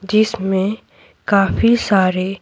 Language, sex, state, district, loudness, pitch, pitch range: Hindi, female, Bihar, Patna, -16 LUFS, 195 Hz, 190-220 Hz